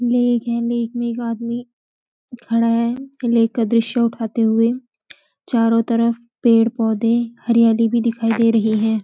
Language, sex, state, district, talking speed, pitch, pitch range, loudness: Hindi, female, Uttarakhand, Uttarkashi, 155 wpm, 230 Hz, 230-235 Hz, -18 LUFS